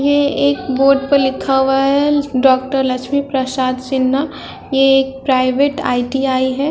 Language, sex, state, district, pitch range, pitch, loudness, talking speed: Hindi, female, Bihar, Vaishali, 260-280 Hz, 270 Hz, -15 LUFS, 145 wpm